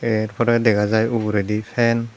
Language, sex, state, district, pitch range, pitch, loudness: Chakma, male, Tripura, Dhalai, 105-115 Hz, 110 Hz, -19 LUFS